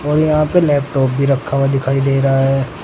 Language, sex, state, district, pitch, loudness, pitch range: Hindi, male, Uttar Pradesh, Saharanpur, 135 Hz, -15 LUFS, 135-150 Hz